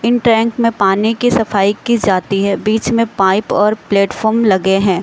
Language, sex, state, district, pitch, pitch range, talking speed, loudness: Hindi, female, Uttar Pradesh, Lalitpur, 215 Hz, 195-230 Hz, 190 wpm, -14 LUFS